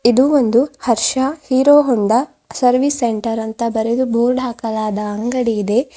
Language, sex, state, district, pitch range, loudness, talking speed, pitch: Kannada, female, Karnataka, Bidar, 225-260 Hz, -16 LUFS, 120 wpm, 240 Hz